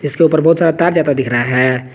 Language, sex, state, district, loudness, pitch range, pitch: Hindi, male, Jharkhand, Garhwa, -13 LUFS, 130-165 Hz, 145 Hz